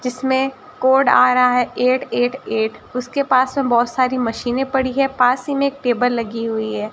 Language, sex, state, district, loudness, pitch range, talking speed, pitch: Hindi, female, Rajasthan, Barmer, -18 LUFS, 240-265 Hz, 210 wpm, 250 Hz